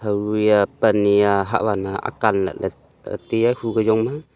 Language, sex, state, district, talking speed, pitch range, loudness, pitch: Wancho, male, Arunachal Pradesh, Longding, 190 wpm, 100-115 Hz, -19 LUFS, 105 Hz